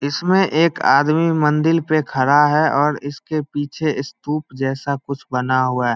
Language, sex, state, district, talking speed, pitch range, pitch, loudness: Hindi, male, Bihar, Samastipur, 160 wpm, 135-155 Hz, 145 Hz, -18 LUFS